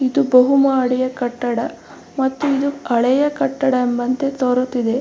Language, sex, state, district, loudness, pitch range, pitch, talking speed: Kannada, female, Karnataka, Mysore, -18 LUFS, 250-275 Hz, 260 Hz, 105 wpm